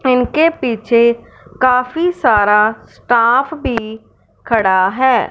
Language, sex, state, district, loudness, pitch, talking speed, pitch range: Hindi, male, Punjab, Fazilka, -14 LUFS, 240 Hz, 90 wpm, 220-260 Hz